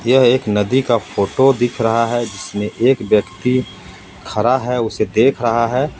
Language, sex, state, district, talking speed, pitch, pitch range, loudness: Hindi, male, Jharkhand, Ranchi, 170 wpm, 115 Hz, 105-130 Hz, -16 LUFS